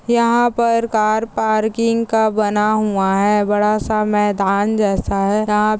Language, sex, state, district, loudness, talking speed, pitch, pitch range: Hindi, male, Maharashtra, Aurangabad, -16 LUFS, 145 wpm, 215 Hz, 205-225 Hz